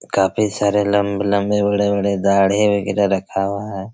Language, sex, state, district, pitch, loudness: Hindi, male, Chhattisgarh, Raigarh, 100 Hz, -18 LUFS